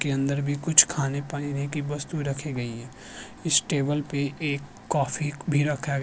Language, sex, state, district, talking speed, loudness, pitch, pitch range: Hindi, male, Uttarakhand, Tehri Garhwal, 200 wpm, -25 LUFS, 145 Hz, 140-150 Hz